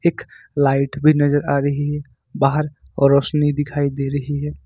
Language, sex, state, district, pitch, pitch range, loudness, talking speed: Hindi, male, Jharkhand, Ranchi, 145 Hz, 140-145 Hz, -19 LUFS, 180 wpm